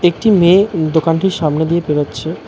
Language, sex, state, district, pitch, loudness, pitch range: Bengali, male, West Bengal, Cooch Behar, 165 Hz, -14 LUFS, 155-180 Hz